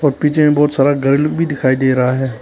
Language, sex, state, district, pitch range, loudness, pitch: Hindi, male, Arunachal Pradesh, Papum Pare, 130-150 Hz, -14 LUFS, 145 Hz